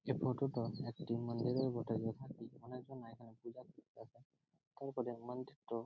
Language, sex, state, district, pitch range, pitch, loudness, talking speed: Bengali, male, West Bengal, Jhargram, 115-135 Hz, 125 Hz, -43 LUFS, 145 wpm